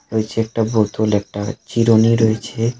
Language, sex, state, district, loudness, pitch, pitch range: Bengali, male, West Bengal, Alipurduar, -18 LUFS, 110 Hz, 110-115 Hz